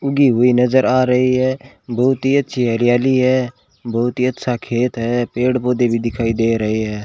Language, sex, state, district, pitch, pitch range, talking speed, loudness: Hindi, male, Rajasthan, Bikaner, 125 Hz, 120-130 Hz, 195 wpm, -17 LUFS